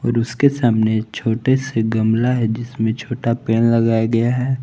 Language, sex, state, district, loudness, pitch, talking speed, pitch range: Hindi, male, Jharkhand, Palamu, -18 LUFS, 115 Hz, 155 wpm, 110-125 Hz